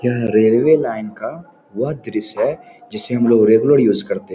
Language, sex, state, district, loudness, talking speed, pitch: Hindi, male, Bihar, Samastipur, -16 LUFS, 180 wpm, 120 Hz